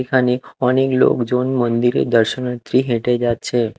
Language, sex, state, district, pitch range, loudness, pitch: Bengali, male, Odisha, Khordha, 120-130 Hz, -17 LUFS, 125 Hz